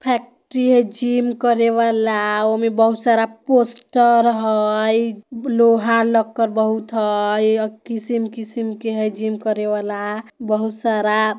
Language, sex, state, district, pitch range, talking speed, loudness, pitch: Bajjika, female, Bihar, Vaishali, 215-235 Hz, 120 wpm, -18 LUFS, 225 Hz